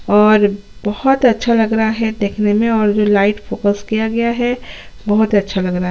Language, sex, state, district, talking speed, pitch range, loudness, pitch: Hindi, female, Chhattisgarh, Sukma, 190 wpm, 205-225 Hz, -15 LUFS, 215 Hz